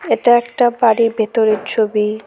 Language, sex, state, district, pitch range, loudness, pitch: Bengali, female, West Bengal, Cooch Behar, 215-240 Hz, -15 LUFS, 225 Hz